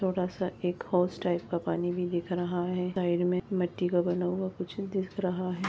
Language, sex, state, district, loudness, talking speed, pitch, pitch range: Hindi, female, Maharashtra, Nagpur, -31 LUFS, 210 wpm, 180 Hz, 175-185 Hz